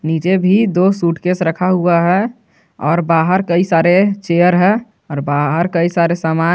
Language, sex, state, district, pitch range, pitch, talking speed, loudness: Hindi, male, Jharkhand, Garhwa, 165-185 Hz, 175 Hz, 175 wpm, -14 LUFS